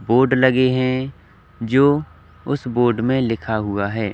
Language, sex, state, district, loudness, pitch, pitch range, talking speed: Hindi, male, Madhya Pradesh, Katni, -19 LUFS, 120 Hz, 110-130 Hz, 145 wpm